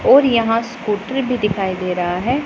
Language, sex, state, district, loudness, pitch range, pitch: Hindi, female, Punjab, Pathankot, -18 LUFS, 195-250 Hz, 225 Hz